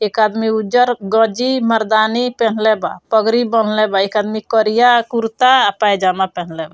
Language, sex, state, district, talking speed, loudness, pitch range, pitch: Bhojpuri, female, Bihar, Muzaffarpur, 160 wpm, -15 LUFS, 210-235 Hz, 220 Hz